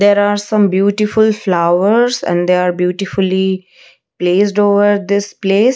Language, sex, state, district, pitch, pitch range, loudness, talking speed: English, female, Odisha, Malkangiri, 200 Hz, 185-205 Hz, -13 LUFS, 135 wpm